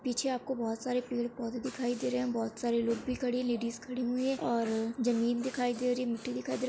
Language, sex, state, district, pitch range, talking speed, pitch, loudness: Hindi, female, Bihar, Darbhanga, 235-250 Hz, 270 wpm, 245 Hz, -33 LUFS